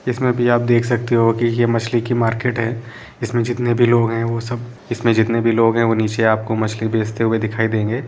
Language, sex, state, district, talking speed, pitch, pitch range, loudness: Hindi, male, Jharkhand, Sahebganj, 225 wpm, 115 Hz, 115-120 Hz, -18 LUFS